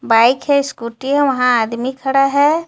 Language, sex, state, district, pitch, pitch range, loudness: Hindi, female, Jharkhand, Ranchi, 265 Hz, 240-280 Hz, -15 LUFS